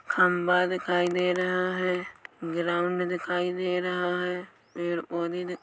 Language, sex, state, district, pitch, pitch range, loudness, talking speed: Hindi, male, Chhattisgarh, Bilaspur, 180 Hz, 175-180 Hz, -27 LUFS, 150 wpm